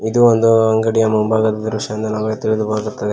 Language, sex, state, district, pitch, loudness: Kannada, male, Karnataka, Koppal, 110 Hz, -16 LUFS